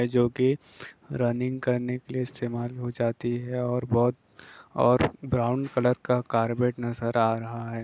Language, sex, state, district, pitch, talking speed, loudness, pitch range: Hindi, male, Bihar, Jahanabad, 120 Hz, 160 wpm, -27 LUFS, 120-125 Hz